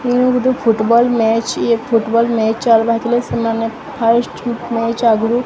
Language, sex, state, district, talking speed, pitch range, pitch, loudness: Odia, female, Odisha, Sambalpur, 155 wpm, 225-240 Hz, 230 Hz, -15 LUFS